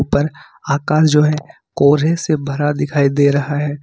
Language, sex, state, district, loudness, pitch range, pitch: Hindi, male, Jharkhand, Ranchi, -16 LUFS, 145-155 Hz, 145 Hz